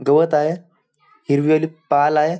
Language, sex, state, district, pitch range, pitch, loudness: Marathi, male, Maharashtra, Chandrapur, 150-165 Hz, 155 Hz, -18 LUFS